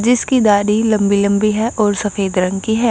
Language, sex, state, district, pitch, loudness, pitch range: Hindi, female, Punjab, Kapurthala, 210 Hz, -15 LUFS, 200-220 Hz